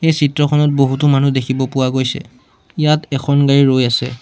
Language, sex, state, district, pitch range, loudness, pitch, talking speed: Assamese, male, Assam, Sonitpur, 130-145 Hz, -14 LUFS, 140 Hz, 170 wpm